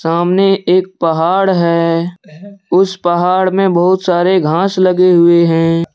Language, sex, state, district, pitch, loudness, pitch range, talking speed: Hindi, male, Jharkhand, Deoghar, 180 Hz, -12 LUFS, 170-190 Hz, 130 wpm